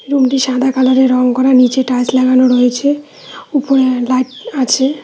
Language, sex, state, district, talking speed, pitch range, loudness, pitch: Bengali, female, West Bengal, Cooch Behar, 140 wpm, 255-270 Hz, -12 LUFS, 260 Hz